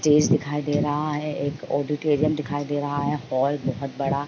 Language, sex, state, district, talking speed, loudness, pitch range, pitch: Hindi, female, Uttar Pradesh, Varanasi, 210 wpm, -24 LUFS, 140-150 Hz, 145 Hz